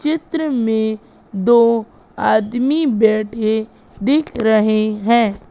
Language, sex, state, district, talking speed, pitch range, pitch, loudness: Hindi, female, Madhya Pradesh, Katni, 85 wpm, 215-250 Hz, 225 Hz, -16 LUFS